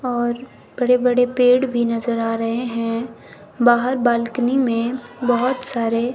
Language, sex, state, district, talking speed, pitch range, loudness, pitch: Hindi, male, Himachal Pradesh, Shimla, 135 wpm, 230-250 Hz, -19 LUFS, 240 Hz